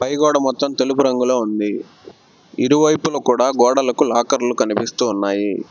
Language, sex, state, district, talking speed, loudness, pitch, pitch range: Telugu, male, Telangana, Hyderabad, 115 wpm, -17 LUFS, 125 Hz, 120-140 Hz